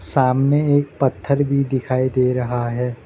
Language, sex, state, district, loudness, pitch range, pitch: Hindi, male, Arunachal Pradesh, Lower Dibang Valley, -19 LUFS, 125-140 Hz, 130 Hz